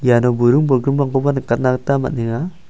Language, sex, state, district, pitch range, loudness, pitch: Garo, male, Meghalaya, South Garo Hills, 120-140 Hz, -17 LUFS, 130 Hz